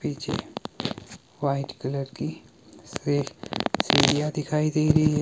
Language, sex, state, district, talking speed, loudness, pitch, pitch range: Hindi, male, Himachal Pradesh, Shimla, 115 wpm, -26 LUFS, 145 Hz, 140-150 Hz